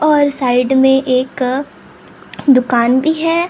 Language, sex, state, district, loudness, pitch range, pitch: Hindi, male, Maharashtra, Gondia, -13 LUFS, 255-290 Hz, 265 Hz